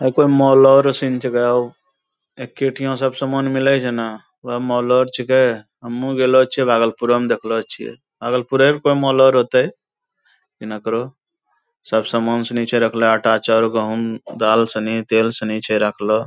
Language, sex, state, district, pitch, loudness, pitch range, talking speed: Angika, male, Bihar, Bhagalpur, 120 Hz, -17 LUFS, 115-135 Hz, 165 wpm